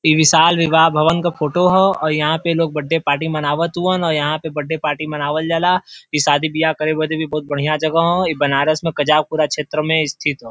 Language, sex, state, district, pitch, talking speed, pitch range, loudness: Bhojpuri, male, Uttar Pradesh, Varanasi, 155 Hz, 230 wpm, 150-165 Hz, -17 LUFS